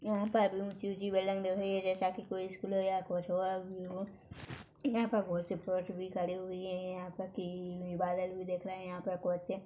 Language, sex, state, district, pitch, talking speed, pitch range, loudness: Hindi, female, Chhattisgarh, Korba, 185 Hz, 195 wpm, 180-195 Hz, -37 LUFS